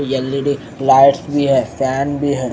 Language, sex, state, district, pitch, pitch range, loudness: Hindi, male, Chandigarh, Chandigarh, 135 Hz, 135-140 Hz, -15 LUFS